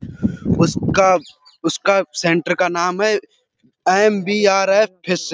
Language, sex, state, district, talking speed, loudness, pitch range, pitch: Hindi, male, Uttar Pradesh, Budaun, 100 wpm, -17 LUFS, 170-205 Hz, 185 Hz